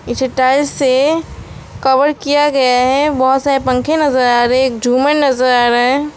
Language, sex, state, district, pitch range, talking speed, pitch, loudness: Hindi, female, West Bengal, Alipurduar, 255-285 Hz, 195 wpm, 265 Hz, -13 LUFS